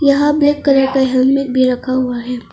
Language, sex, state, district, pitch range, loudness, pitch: Hindi, female, Arunachal Pradesh, Longding, 255-280 Hz, -14 LUFS, 265 Hz